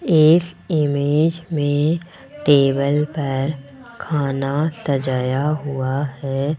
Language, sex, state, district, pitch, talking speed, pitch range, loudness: Hindi, male, Rajasthan, Jaipur, 145 Hz, 80 wpm, 135-155 Hz, -19 LUFS